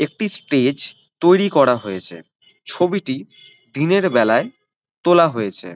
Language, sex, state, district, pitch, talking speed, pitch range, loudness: Bengali, male, West Bengal, Kolkata, 150 Hz, 105 wpm, 115-190 Hz, -18 LUFS